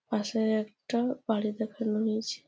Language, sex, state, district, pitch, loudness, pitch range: Bengali, female, West Bengal, Jalpaiguri, 220 Hz, -30 LUFS, 215-225 Hz